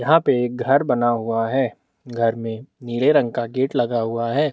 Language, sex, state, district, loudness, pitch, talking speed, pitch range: Hindi, male, Chhattisgarh, Bastar, -20 LUFS, 120 Hz, 200 wpm, 115-135 Hz